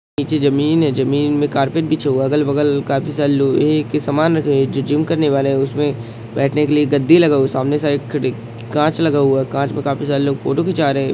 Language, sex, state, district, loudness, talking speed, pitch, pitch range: Hindi, male, Andhra Pradesh, Srikakulam, -16 LUFS, 40 wpm, 145 Hz, 135-150 Hz